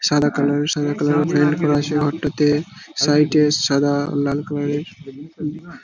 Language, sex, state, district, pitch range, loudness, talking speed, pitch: Bengali, male, West Bengal, Purulia, 145-150 Hz, -19 LUFS, 185 wpm, 145 Hz